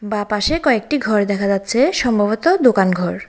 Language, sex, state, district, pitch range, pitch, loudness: Bengali, female, Tripura, West Tripura, 200-265 Hz, 215 Hz, -16 LUFS